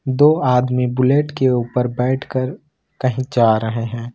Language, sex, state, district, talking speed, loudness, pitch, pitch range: Hindi, male, Jharkhand, Ranchi, 145 wpm, -18 LUFS, 130 Hz, 125-130 Hz